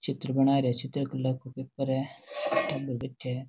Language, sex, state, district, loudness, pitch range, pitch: Marwari, male, Rajasthan, Nagaur, -30 LUFS, 130-140 Hz, 135 Hz